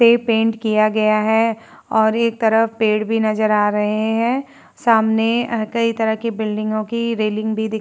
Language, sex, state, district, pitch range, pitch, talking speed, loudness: Hindi, female, Uttar Pradesh, Varanasi, 215-230 Hz, 220 Hz, 185 wpm, -18 LUFS